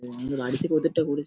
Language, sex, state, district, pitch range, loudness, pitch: Bengali, male, West Bengal, Paschim Medinipur, 130-160 Hz, -26 LUFS, 145 Hz